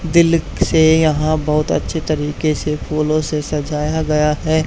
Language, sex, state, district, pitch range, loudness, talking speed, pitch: Hindi, male, Haryana, Charkhi Dadri, 150-160 Hz, -17 LUFS, 155 wpm, 155 Hz